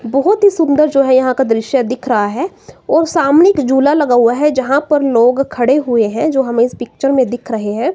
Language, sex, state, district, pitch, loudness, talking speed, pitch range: Hindi, female, Himachal Pradesh, Shimla, 270 Hz, -13 LUFS, 240 wpm, 245-300 Hz